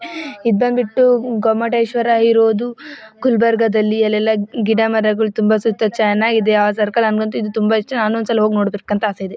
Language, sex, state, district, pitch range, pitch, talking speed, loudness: Kannada, female, Karnataka, Dakshina Kannada, 215-230 Hz, 220 Hz, 145 wpm, -16 LUFS